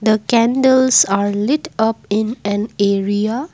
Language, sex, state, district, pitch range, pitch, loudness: English, female, Assam, Kamrup Metropolitan, 205-255 Hz, 220 Hz, -16 LUFS